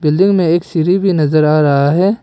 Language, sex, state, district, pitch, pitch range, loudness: Hindi, male, Arunachal Pradesh, Papum Pare, 165 Hz, 150-185 Hz, -12 LUFS